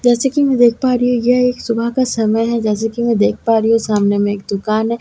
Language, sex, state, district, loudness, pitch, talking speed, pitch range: Hindi, female, Bihar, Katihar, -15 LUFS, 230 Hz, 300 wpm, 215-245 Hz